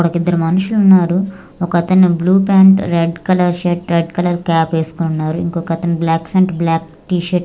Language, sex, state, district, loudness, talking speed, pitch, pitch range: Telugu, female, Andhra Pradesh, Manyam, -14 LUFS, 175 wpm, 175 Hz, 165-185 Hz